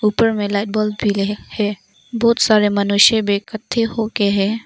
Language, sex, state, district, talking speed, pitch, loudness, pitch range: Hindi, female, Arunachal Pradesh, Longding, 165 wpm, 210 Hz, -17 LUFS, 205-225 Hz